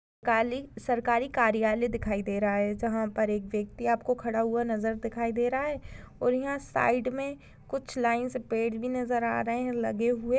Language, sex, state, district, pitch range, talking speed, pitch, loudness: Hindi, female, Goa, North and South Goa, 225-250 Hz, 195 wpm, 235 Hz, -29 LUFS